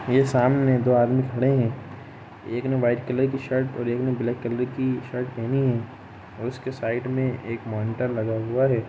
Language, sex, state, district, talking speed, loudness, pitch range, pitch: Hindi, male, Jharkhand, Jamtara, 195 wpm, -24 LUFS, 120-130 Hz, 125 Hz